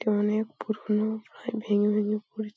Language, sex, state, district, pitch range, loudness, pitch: Bengali, female, West Bengal, Paschim Medinipur, 210-220 Hz, -28 LUFS, 215 Hz